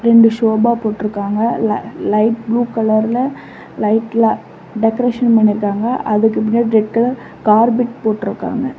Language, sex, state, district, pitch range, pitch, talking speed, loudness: Tamil, female, Tamil Nadu, Namakkal, 215-235 Hz, 225 Hz, 110 wpm, -15 LUFS